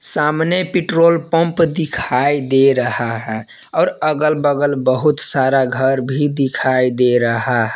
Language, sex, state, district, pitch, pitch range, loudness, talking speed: Hindi, male, Jharkhand, Palamu, 135 Hz, 125-155 Hz, -16 LUFS, 130 wpm